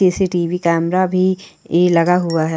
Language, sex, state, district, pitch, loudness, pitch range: Hindi, female, Uttarakhand, Uttarkashi, 180 Hz, -16 LUFS, 170-185 Hz